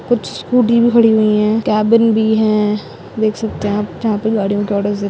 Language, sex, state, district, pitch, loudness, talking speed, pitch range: Hindi, female, Maharashtra, Dhule, 215 Hz, -15 LUFS, 235 wpm, 210-225 Hz